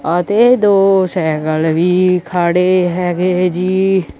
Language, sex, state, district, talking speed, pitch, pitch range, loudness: Punjabi, male, Punjab, Kapurthala, 100 wpm, 180 Hz, 175-190 Hz, -13 LUFS